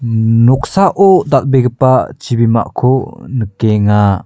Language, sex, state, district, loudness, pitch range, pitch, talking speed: Garo, male, Meghalaya, South Garo Hills, -12 LUFS, 115-135 Hz, 125 Hz, 70 wpm